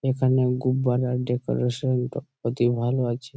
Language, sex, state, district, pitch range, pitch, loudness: Bengali, male, West Bengal, Malda, 125-130 Hz, 125 Hz, -24 LUFS